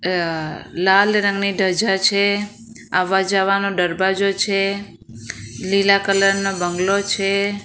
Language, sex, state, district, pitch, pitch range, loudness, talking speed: Gujarati, female, Gujarat, Valsad, 195 Hz, 185-200 Hz, -18 LUFS, 110 wpm